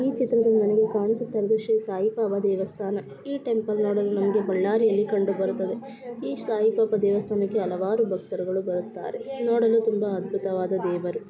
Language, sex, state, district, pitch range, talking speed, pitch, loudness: Kannada, female, Karnataka, Bellary, 195-225 Hz, 150 wpm, 210 Hz, -25 LUFS